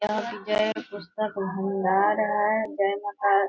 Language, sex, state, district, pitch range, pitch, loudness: Hindi, female, Bihar, Purnia, 195-215 Hz, 205 Hz, -26 LUFS